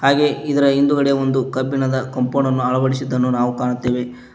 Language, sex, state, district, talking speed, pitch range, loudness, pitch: Kannada, male, Karnataka, Koppal, 140 wpm, 125-140 Hz, -18 LUFS, 130 Hz